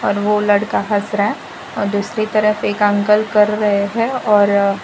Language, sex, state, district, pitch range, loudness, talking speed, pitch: Hindi, female, Gujarat, Valsad, 205-210 Hz, -16 LUFS, 185 wpm, 210 Hz